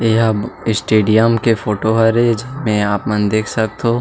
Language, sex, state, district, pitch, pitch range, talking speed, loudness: Chhattisgarhi, male, Chhattisgarh, Sarguja, 110 Hz, 105-115 Hz, 150 wpm, -15 LUFS